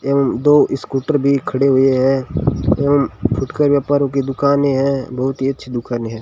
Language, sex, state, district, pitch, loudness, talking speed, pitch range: Hindi, male, Rajasthan, Bikaner, 135 Hz, -16 LUFS, 175 wpm, 130-140 Hz